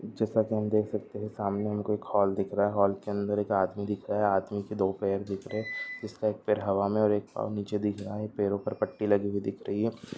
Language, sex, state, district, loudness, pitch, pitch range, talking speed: Hindi, male, Andhra Pradesh, Anantapur, -30 LUFS, 105 Hz, 100-105 Hz, 285 wpm